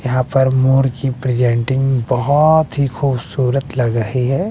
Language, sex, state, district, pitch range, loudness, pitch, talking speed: Hindi, male, Bihar, West Champaran, 125-135 Hz, -16 LUFS, 130 Hz, 145 wpm